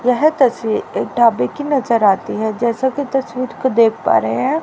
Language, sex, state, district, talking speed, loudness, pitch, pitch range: Hindi, female, Haryana, Rohtak, 205 wpm, -16 LUFS, 245 Hz, 230-270 Hz